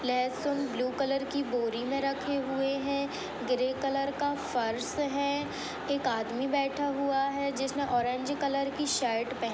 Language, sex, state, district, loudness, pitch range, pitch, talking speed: Hindi, female, Uttar Pradesh, Budaun, -31 LUFS, 255-280 Hz, 275 Hz, 170 wpm